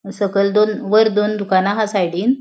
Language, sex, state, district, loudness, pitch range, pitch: Konkani, female, Goa, North and South Goa, -16 LUFS, 195-215 Hz, 205 Hz